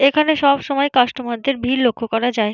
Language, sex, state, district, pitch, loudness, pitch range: Bengali, female, West Bengal, Jalpaiguri, 255 Hz, -18 LUFS, 235-280 Hz